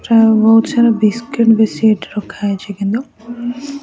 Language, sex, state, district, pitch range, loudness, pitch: Odia, female, Odisha, Khordha, 215-235 Hz, -14 LUFS, 225 Hz